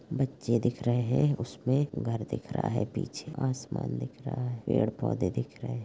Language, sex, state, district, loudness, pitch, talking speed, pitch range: Hindi, female, Chhattisgarh, Rajnandgaon, -31 LUFS, 130 Hz, 185 wpm, 120-140 Hz